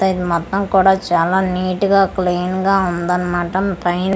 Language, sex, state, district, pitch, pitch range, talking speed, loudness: Telugu, female, Andhra Pradesh, Manyam, 185 Hz, 175-190 Hz, 145 wpm, -16 LUFS